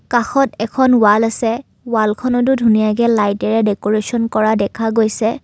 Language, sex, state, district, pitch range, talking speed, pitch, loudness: Assamese, female, Assam, Kamrup Metropolitan, 215-240 Hz, 110 wpm, 225 Hz, -15 LUFS